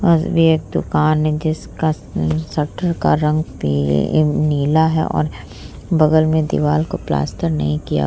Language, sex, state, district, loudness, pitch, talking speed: Hindi, female, Bihar, Vaishali, -17 LUFS, 150 Hz, 155 wpm